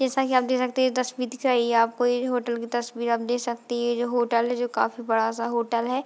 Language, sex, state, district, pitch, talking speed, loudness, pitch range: Hindi, female, Bihar, Darbhanga, 240 Hz, 305 wpm, -25 LUFS, 235-255 Hz